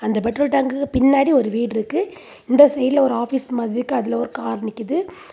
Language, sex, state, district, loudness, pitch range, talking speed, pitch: Tamil, female, Tamil Nadu, Kanyakumari, -19 LUFS, 235-280 Hz, 180 wpm, 260 Hz